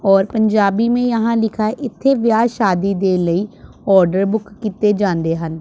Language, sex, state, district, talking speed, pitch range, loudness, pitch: Hindi, male, Punjab, Pathankot, 65 wpm, 195-225 Hz, -16 LUFS, 210 Hz